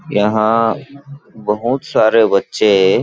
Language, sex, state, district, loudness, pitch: Hindi, male, Chhattisgarh, Balrampur, -14 LUFS, 140 Hz